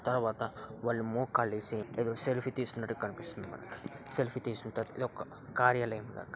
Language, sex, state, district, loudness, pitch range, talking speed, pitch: Telugu, male, Andhra Pradesh, Visakhapatnam, -35 LUFS, 110-125 Hz, 130 wpm, 115 Hz